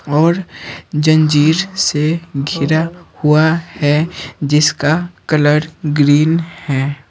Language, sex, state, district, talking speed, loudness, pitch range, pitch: Hindi, male, Bihar, Patna, 70 wpm, -14 LUFS, 145-165 Hz, 155 Hz